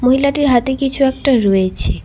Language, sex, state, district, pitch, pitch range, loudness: Bengali, female, West Bengal, Cooch Behar, 260 Hz, 195-270 Hz, -14 LUFS